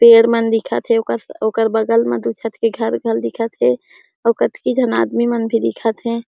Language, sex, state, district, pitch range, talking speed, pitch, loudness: Chhattisgarhi, female, Chhattisgarh, Jashpur, 150-230 Hz, 200 wpm, 225 Hz, -17 LUFS